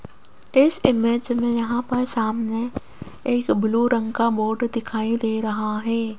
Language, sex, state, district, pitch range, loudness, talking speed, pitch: Hindi, female, Rajasthan, Jaipur, 220-240 Hz, -22 LUFS, 145 wpm, 230 Hz